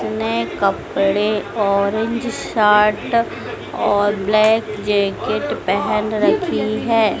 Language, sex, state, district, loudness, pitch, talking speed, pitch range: Hindi, female, Madhya Pradesh, Dhar, -18 LUFS, 210 Hz, 85 wpm, 200-220 Hz